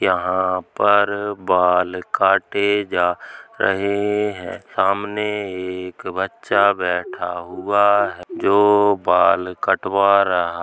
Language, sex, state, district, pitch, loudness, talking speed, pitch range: Hindi, male, Uttar Pradesh, Jalaun, 100 Hz, -19 LUFS, 95 wpm, 90-100 Hz